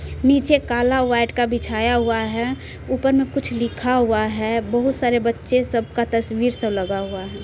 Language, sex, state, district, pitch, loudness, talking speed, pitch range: Maithili, female, Bihar, Supaul, 240 Hz, -20 LUFS, 195 wpm, 230-250 Hz